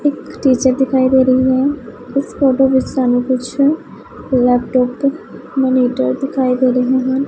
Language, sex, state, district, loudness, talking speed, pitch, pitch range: Punjabi, female, Punjab, Pathankot, -15 LUFS, 150 wpm, 260 Hz, 250-270 Hz